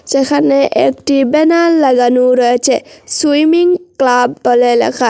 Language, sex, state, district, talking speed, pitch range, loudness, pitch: Bengali, female, Assam, Hailakandi, 105 wpm, 245-305 Hz, -11 LUFS, 275 Hz